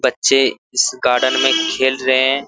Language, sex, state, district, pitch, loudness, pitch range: Hindi, male, Jharkhand, Sahebganj, 135 Hz, -15 LUFS, 130-140 Hz